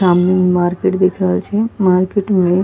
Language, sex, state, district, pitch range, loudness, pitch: Angika, female, Bihar, Bhagalpur, 180-195 Hz, -15 LUFS, 185 Hz